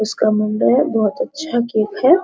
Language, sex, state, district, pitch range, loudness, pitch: Hindi, female, Bihar, Araria, 215-290 Hz, -17 LUFS, 230 Hz